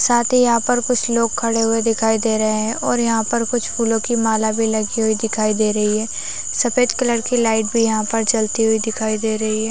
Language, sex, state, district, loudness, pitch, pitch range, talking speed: Hindi, female, Chhattisgarh, Raigarh, -17 LUFS, 225 Hz, 220-235 Hz, 240 wpm